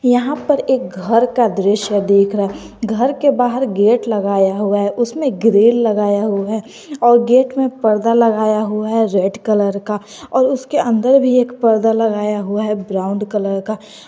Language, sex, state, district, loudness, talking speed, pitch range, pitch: Hindi, female, Jharkhand, Garhwa, -15 LUFS, 185 wpm, 205-245 Hz, 220 Hz